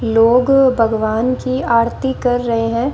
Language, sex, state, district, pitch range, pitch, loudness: Hindi, female, Rajasthan, Bikaner, 230-255 Hz, 240 Hz, -15 LUFS